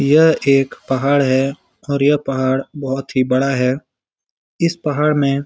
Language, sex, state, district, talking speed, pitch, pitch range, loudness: Hindi, male, Bihar, Lakhisarai, 155 wpm, 135 Hz, 130-145 Hz, -17 LUFS